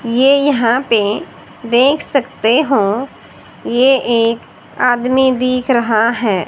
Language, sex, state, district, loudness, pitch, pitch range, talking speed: Hindi, male, Haryana, Charkhi Dadri, -14 LUFS, 245 Hz, 230-260 Hz, 110 wpm